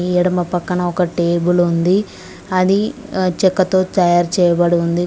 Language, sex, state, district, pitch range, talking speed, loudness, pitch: Telugu, female, Telangana, Mahabubabad, 175-185 Hz, 120 wpm, -16 LUFS, 180 Hz